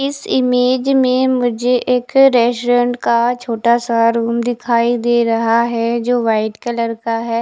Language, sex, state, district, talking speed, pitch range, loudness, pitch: Hindi, female, Bihar, West Champaran, 155 wpm, 230-250 Hz, -15 LUFS, 240 Hz